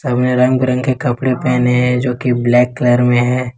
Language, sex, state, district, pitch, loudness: Hindi, male, Jharkhand, Ranchi, 125 Hz, -14 LUFS